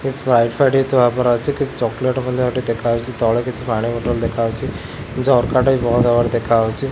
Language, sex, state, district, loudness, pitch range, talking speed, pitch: Odia, male, Odisha, Khordha, -17 LUFS, 115-130 Hz, 175 wpm, 120 Hz